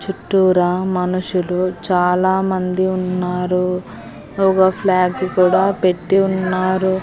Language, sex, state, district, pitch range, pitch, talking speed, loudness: Telugu, female, Andhra Pradesh, Annamaya, 180-190 Hz, 185 Hz, 75 wpm, -17 LUFS